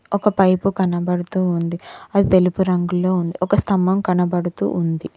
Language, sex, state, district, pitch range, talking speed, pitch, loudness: Telugu, female, Telangana, Mahabubabad, 175-190 Hz, 140 wpm, 180 Hz, -19 LUFS